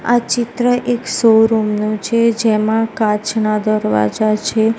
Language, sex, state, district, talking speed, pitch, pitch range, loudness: Gujarati, female, Gujarat, Gandhinagar, 125 wpm, 220 Hz, 215-230 Hz, -15 LUFS